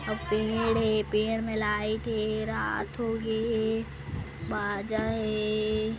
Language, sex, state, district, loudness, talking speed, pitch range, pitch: Hindi, female, Chhattisgarh, Kabirdham, -29 LUFS, 130 wpm, 215-225 Hz, 220 Hz